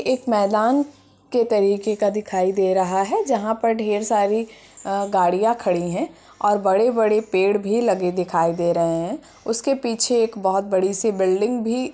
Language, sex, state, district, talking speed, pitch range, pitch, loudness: Hindi, female, Bihar, Purnia, 170 wpm, 190-230 Hz, 210 Hz, -20 LUFS